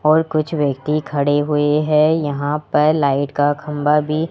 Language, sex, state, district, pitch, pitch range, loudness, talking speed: Hindi, male, Rajasthan, Jaipur, 150 Hz, 145-155 Hz, -17 LUFS, 165 wpm